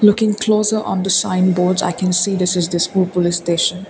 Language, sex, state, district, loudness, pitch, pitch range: English, female, Assam, Kamrup Metropolitan, -16 LUFS, 185 Hz, 180-205 Hz